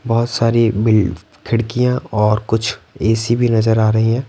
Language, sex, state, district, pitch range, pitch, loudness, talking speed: Hindi, male, Bihar, Patna, 110-115 Hz, 115 Hz, -16 LUFS, 180 wpm